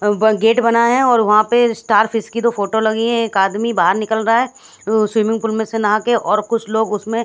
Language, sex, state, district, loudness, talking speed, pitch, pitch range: Hindi, female, Haryana, Charkhi Dadri, -16 LUFS, 265 wpm, 220 Hz, 215-230 Hz